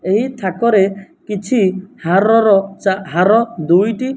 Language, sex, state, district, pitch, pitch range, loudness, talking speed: Odia, male, Odisha, Nuapada, 200 Hz, 190-225 Hz, -15 LUFS, 115 wpm